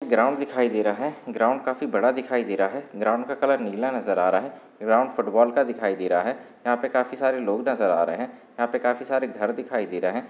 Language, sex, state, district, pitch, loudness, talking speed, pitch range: Hindi, male, Maharashtra, Pune, 125 Hz, -24 LUFS, 260 wpm, 110-130 Hz